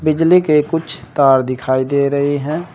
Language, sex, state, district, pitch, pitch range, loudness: Hindi, male, Uttar Pradesh, Saharanpur, 145 Hz, 135-155 Hz, -15 LUFS